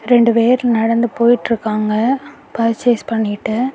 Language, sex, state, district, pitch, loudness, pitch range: Tamil, female, Tamil Nadu, Kanyakumari, 230 Hz, -15 LUFS, 225-245 Hz